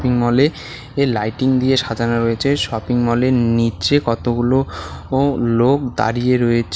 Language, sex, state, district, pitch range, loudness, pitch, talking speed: Bengali, male, West Bengal, Alipurduar, 115-130 Hz, -17 LUFS, 120 Hz, 135 wpm